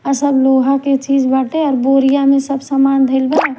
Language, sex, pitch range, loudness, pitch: Bhojpuri, female, 265-275 Hz, -13 LUFS, 275 Hz